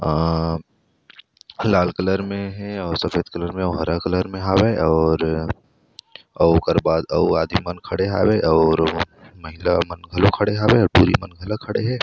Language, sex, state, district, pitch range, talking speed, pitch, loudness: Chhattisgarhi, male, Chhattisgarh, Rajnandgaon, 80-100 Hz, 155 wpm, 90 Hz, -20 LUFS